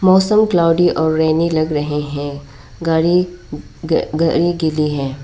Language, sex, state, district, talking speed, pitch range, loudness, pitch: Hindi, female, Arunachal Pradesh, Lower Dibang Valley, 125 wpm, 150-170 Hz, -16 LUFS, 160 Hz